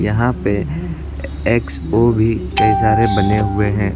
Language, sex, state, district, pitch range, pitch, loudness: Hindi, male, Uttar Pradesh, Lucknow, 90-110 Hz, 100 Hz, -16 LUFS